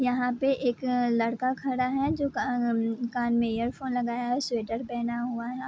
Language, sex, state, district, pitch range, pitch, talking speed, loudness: Hindi, female, Bihar, Vaishali, 235-255 Hz, 245 Hz, 190 wpm, -28 LUFS